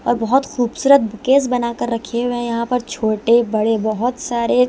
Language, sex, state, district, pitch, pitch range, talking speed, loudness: Hindi, female, Delhi, New Delhi, 240 Hz, 230-250 Hz, 165 wpm, -18 LUFS